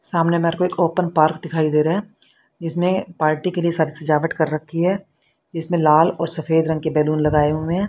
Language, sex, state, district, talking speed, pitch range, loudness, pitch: Hindi, female, Haryana, Rohtak, 220 wpm, 155-175 Hz, -19 LUFS, 165 Hz